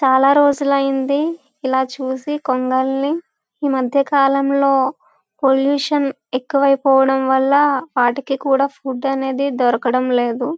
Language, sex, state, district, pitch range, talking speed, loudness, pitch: Telugu, female, Andhra Pradesh, Visakhapatnam, 260-280 Hz, 115 wpm, -17 LUFS, 275 Hz